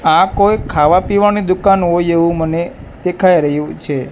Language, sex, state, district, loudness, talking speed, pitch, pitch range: Gujarati, male, Gujarat, Gandhinagar, -13 LUFS, 145 wpm, 175 Hz, 160-195 Hz